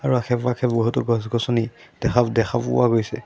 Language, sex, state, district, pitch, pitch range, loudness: Assamese, male, Assam, Sonitpur, 120 Hz, 115-125 Hz, -21 LUFS